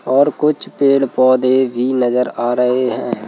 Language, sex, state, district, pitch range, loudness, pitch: Hindi, male, Madhya Pradesh, Bhopal, 125-135 Hz, -15 LUFS, 130 Hz